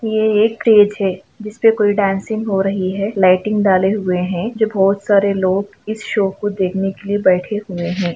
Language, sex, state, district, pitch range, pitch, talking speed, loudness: Hindi, female, Chhattisgarh, Bastar, 190-210 Hz, 200 Hz, 205 wpm, -16 LUFS